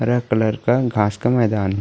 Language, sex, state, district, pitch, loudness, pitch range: Hindi, male, Uttarakhand, Tehri Garhwal, 115 Hz, -19 LUFS, 105-120 Hz